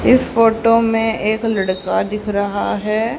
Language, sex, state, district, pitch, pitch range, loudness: Hindi, female, Haryana, Rohtak, 220 Hz, 210-225 Hz, -17 LUFS